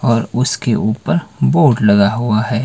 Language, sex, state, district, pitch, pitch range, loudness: Hindi, male, Himachal Pradesh, Shimla, 115 Hz, 110-130 Hz, -14 LUFS